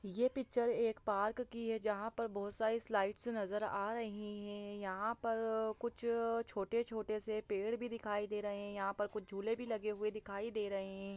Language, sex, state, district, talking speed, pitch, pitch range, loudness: Hindi, female, Bihar, Saran, 200 wpm, 215 Hz, 205-230 Hz, -40 LUFS